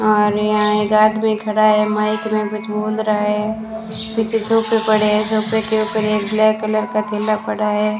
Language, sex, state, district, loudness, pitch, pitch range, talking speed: Hindi, female, Rajasthan, Bikaner, -17 LUFS, 215 Hz, 210-220 Hz, 195 wpm